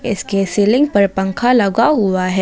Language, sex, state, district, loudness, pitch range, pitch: Hindi, female, Jharkhand, Ranchi, -15 LUFS, 190-230 Hz, 200 Hz